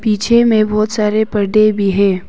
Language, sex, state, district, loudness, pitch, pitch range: Hindi, female, Arunachal Pradesh, Papum Pare, -13 LUFS, 215 Hz, 205-215 Hz